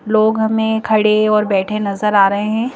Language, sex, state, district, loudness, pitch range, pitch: Hindi, female, Madhya Pradesh, Bhopal, -15 LUFS, 210-220 Hz, 215 Hz